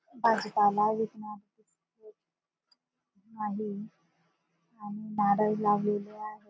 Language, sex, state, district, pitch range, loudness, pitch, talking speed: Marathi, male, Maharashtra, Dhule, 205-215 Hz, -29 LUFS, 210 Hz, 65 wpm